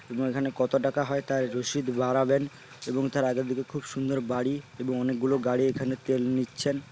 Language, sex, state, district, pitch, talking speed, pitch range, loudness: Bengali, male, West Bengal, Paschim Medinipur, 130 Hz, 180 wpm, 125-135 Hz, -28 LUFS